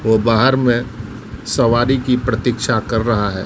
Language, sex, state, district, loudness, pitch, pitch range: Hindi, male, Bihar, Katihar, -16 LUFS, 115 Hz, 110-125 Hz